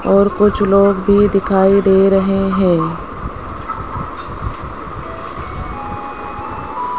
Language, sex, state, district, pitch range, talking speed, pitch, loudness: Hindi, female, Rajasthan, Jaipur, 195-200 Hz, 70 wpm, 195 Hz, -15 LUFS